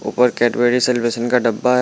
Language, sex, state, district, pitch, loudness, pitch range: Hindi, male, Bihar, Muzaffarpur, 120 Hz, -17 LUFS, 120-125 Hz